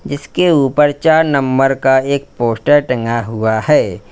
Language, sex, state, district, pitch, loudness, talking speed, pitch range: Hindi, male, Uttar Pradesh, Lalitpur, 135 Hz, -14 LUFS, 145 wpm, 115-145 Hz